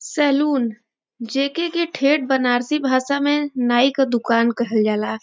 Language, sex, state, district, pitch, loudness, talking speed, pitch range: Bhojpuri, female, Uttar Pradesh, Varanasi, 265 Hz, -19 LUFS, 135 wpm, 235-285 Hz